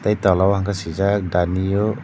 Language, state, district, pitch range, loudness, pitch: Kokborok, Tripura, Dhalai, 95-100 Hz, -19 LUFS, 100 Hz